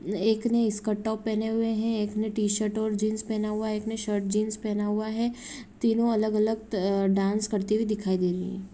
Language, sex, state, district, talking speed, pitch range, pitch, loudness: Hindi, female, Chhattisgarh, Rajnandgaon, 225 wpm, 210-220 Hz, 215 Hz, -27 LUFS